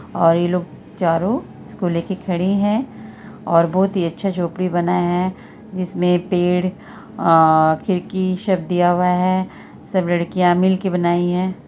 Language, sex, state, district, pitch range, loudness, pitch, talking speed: Hindi, female, Bihar, Araria, 175-190 Hz, -18 LUFS, 180 Hz, 145 wpm